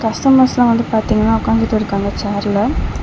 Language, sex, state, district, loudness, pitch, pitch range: Tamil, female, Tamil Nadu, Chennai, -15 LUFS, 225 Hz, 205-235 Hz